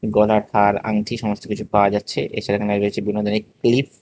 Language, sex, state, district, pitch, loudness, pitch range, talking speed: Bengali, male, Tripura, West Tripura, 105 Hz, -20 LUFS, 100-110 Hz, 210 wpm